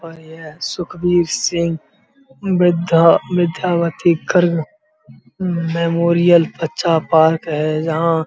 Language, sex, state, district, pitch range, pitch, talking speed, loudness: Hindi, male, Uttar Pradesh, Muzaffarnagar, 165-175 Hz, 170 Hz, 80 wpm, -16 LUFS